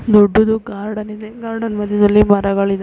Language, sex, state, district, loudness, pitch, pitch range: Kannada, female, Karnataka, Mysore, -15 LUFS, 210 Hz, 205-220 Hz